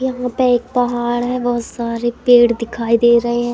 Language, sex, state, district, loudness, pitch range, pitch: Hindi, female, Madhya Pradesh, Katni, -16 LUFS, 235-245 Hz, 240 Hz